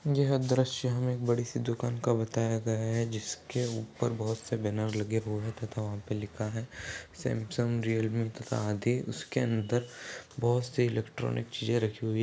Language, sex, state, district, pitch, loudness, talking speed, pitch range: Hindi, male, Uttar Pradesh, Ghazipur, 115 Hz, -32 LUFS, 180 wpm, 110-120 Hz